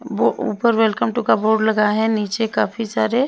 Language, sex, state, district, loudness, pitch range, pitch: Hindi, female, Himachal Pradesh, Shimla, -18 LUFS, 210-225 Hz, 220 Hz